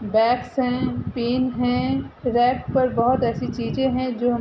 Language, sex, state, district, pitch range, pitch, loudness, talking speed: Hindi, female, Uttar Pradesh, Deoria, 240-255 Hz, 250 Hz, -22 LUFS, 175 wpm